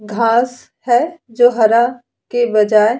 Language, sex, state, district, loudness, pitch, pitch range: Hindi, female, Uttar Pradesh, Jalaun, -14 LUFS, 240 Hz, 220-245 Hz